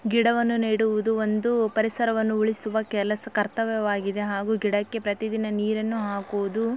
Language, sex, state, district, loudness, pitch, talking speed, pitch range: Kannada, female, Karnataka, Belgaum, -25 LUFS, 220 Hz, 115 wpm, 210-225 Hz